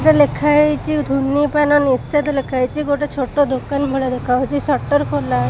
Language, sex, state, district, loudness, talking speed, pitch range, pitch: Odia, female, Odisha, Khordha, -17 LUFS, 165 wpm, 255-295 Hz, 285 Hz